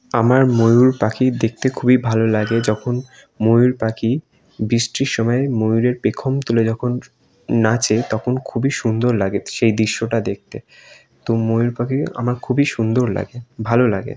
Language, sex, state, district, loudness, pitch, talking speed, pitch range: Bengali, male, West Bengal, North 24 Parganas, -18 LUFS, 115 Hz, 145 wpm, 110-125 Hz